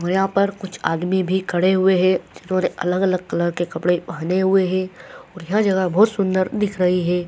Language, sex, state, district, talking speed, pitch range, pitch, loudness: Hindi, male, Andhra Pradesh, Srikakulam, 155 wpm, 180-190 Hz, 185 Hz, -20 LUFS